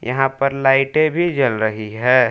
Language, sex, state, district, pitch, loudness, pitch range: Hindi, male, Jharkhand, Palamu, 135 Hz, -17 LUFS, 120-135 Hz